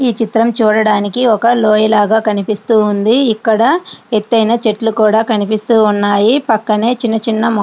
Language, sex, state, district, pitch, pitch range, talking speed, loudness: Telugu, female, Andhra Pradesh, Srikakulam, 220 Hz, 215-230 Hz, 110 wpm, -12 LUFS